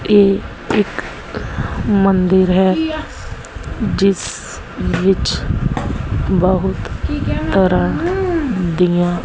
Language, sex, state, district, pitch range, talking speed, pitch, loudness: Punjabi, female, Punjab, Kapurthala, 185-250 Hz, 60 wpm, 195 Hz, -17 LUFS